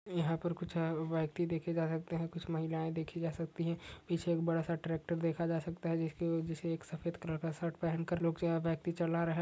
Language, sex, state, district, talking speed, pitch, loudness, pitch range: Hindi, male, Uttar Pradesh, Hamirpur, 240 wpm, 165 Hz, -37 LUFS, 165-170 Hz